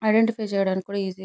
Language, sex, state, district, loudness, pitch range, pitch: Telugu, female, Andhra Pradesh, Chittoor, -24 LUFS, 190-215 Hz, 200 Hz